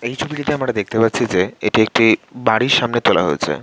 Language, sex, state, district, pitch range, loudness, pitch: Bengali, male, West Bengal, Jhargram, 110-125 Hz, -17 LUFS, 115 Hz